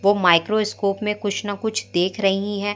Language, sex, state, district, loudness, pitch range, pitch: Hindi, female, Madhya Pradesh, Umaria, -21 LUFS, 195-210 Hz, 205 Hz